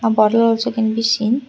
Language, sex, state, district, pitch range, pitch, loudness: English, female, Assam, Kamrup Metropolitan, 220-235 Hz, 230 Hz, -16 LUFS